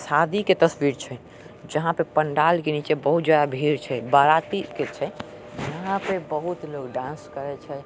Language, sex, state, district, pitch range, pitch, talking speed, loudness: Angika, male, Bihar, Samastipur, 140-165 Hz, 150 Hz, 175 wpm, -23 LUFS